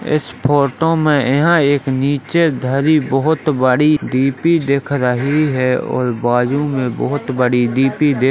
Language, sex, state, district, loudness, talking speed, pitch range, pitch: Hindi, male, Uttarakhand, Tehri Garhwal, -15 LUFS, 150 wpm, 130-150 Hz, 140 Hz